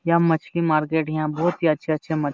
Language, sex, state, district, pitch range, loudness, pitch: Hindi, male, Jharkhand, Jamtara, 155-170 Hz, -22 LUFS, 160 Hz